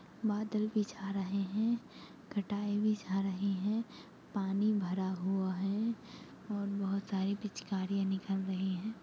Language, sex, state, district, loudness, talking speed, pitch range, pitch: Hindi, female, Chhattisgarh, Sarguja, -36 LUFS, 140 wpm, 195-210 Hz, 200 Hz